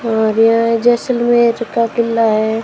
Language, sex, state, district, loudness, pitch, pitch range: Hindi, female, Rajasthan, Jaisalmer, -14 LUFS, 230 Hz, 225-235 Hz